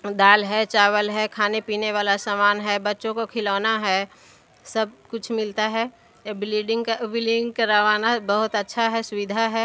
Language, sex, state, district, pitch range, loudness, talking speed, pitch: Hindi, female, Bihar, Patna, 205-225 Hz, -22 LUFS, 175 wpm, 215 Hz